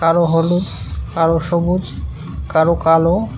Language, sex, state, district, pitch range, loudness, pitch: Bengali, male, West Bengal, Cooch Behar, 135-170 Hz, -16 LUFS, 165 Hz